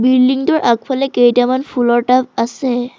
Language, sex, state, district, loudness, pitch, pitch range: Assamese, female, Assam, Sonitpur, -14 LUFS, 250 Hz, 245-260 Hz